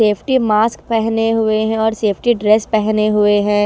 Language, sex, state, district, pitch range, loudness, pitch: Hindi, female, Haryana, Rohtak, 210-225 Hz, -15 LUFS, 215 Hz